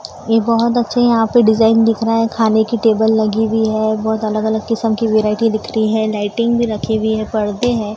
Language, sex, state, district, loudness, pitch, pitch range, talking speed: Hindi, female, Maharashtra, Gondia, -15 LUFS, 220 Hz, 220-225 Hz, 235 wpm